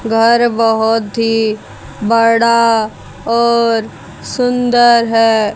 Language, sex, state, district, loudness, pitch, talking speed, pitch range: Hindi, female, Haryana, Jhajjar, -12 LUFS, 230 Hz, 75 wpm, 225-235 Hz